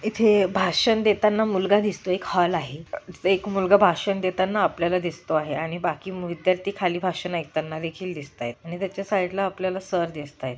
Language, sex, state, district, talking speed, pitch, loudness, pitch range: Marathi, female, Maharashtra, Solapur, 170 wpm, 185 Hz, -24 LUFS, 165-195 Hz